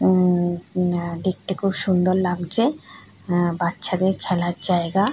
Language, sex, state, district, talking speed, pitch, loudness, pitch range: Bengali, female, West Bengal, North 24 Parganas, 95 wpm, 180 Hz, -22 LUFS, 175-190 Hz